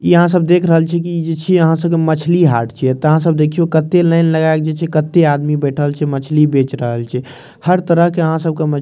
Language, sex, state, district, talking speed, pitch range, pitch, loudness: Maithili, male, Bihar, Purnia, 225 wpm, 145-170 Hz, 160 Hz, -14 LUFS